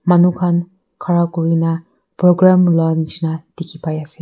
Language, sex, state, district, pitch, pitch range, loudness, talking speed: Nagamese, female, Nagaland, Kohima, 170 Hz, 160-180 Hz, -16 LUFS, 140 wpm